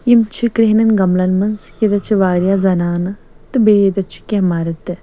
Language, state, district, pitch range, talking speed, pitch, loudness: Kashmiri, Punjab, Kapurthala, 185-215 Hz, 165 wpm, 195 Hz, -15 LUFS